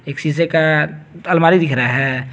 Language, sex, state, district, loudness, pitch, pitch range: Hindi, male, Jharkhand, Garhwa, -15 LUFS, 155 Hz, 135-165 Hz